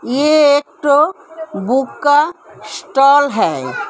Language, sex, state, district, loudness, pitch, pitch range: Hindi, female, Uttar Pradesh, Hamirpur, -14 LUFS, 290 Hz, 275-310 Hz